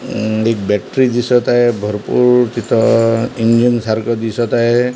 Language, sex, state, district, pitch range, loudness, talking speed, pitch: Marathi, male, Maharashtra, Washim, 115-120 Hz, -14 LUFS, 135 wpm, 115 Hz